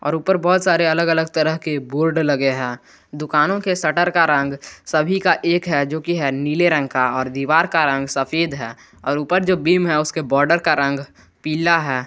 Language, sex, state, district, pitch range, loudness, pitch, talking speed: Hindi, male, Jharkhand, Garhwa, 140-170 Hz, -18 LUFS, 155 Hz, 205 wpm